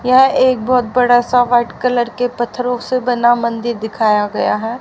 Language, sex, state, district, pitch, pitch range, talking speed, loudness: Hindi, female, Haryana, Rohtak, 245 Hz, 235-250 Hz, 185 wpm, -15 LUFS